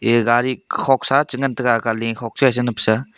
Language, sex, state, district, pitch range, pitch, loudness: Wancho, male, Arunachal Pradesh, Longding, 115-135 Hz, 120 Hz, -18 LUFS